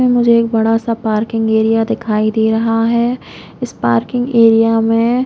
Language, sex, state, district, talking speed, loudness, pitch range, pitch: Hindi, female, Chhattisgarh, Raigarh, 160 wpm, -14 LUFS, 220-235 Hz, 225 Hz